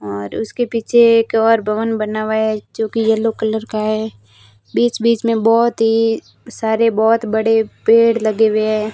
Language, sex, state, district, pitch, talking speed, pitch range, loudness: Hindi, female, Rajasthan, Barmer, 220 Hz, 180 wpm, 215-225 Hz, -16 LUFS